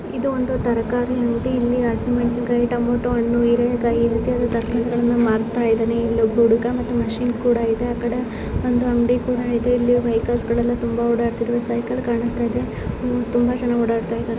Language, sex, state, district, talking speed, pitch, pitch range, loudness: Kannada, female, Karnataka, Dharwad, 160 wpm, 240 Hz, 235-245 Hz, -20 LUFS